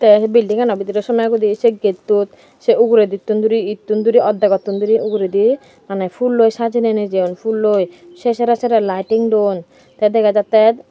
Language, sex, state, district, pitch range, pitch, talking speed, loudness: Chakma, female, Tripura, Dhalai, 200-230 Hz, 215 Hz, 160 wpm, -15 LUFS